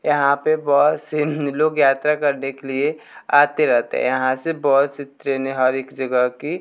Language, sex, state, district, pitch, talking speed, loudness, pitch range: Hindi, male, Bihar, West Champaran, 140 Hz, 200 wpm, -19 LUFS, 135-150 Hz